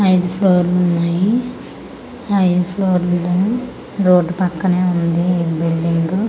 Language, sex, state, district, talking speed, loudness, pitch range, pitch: Telugu, female, Andhra Pradesh, Manyam, 105 wpm, -16 LUFS, 175-195 Hz, 180 Hz